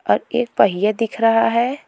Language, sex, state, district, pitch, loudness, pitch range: Hindi, female, Goa, North and South Goa, 230 Hz, -18 LUFS, 225-240 Hz